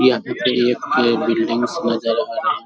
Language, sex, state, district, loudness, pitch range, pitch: Hindi, male, Bihar, Darbhanga, -18 LUFS, 115-125 Hz, 120 Hz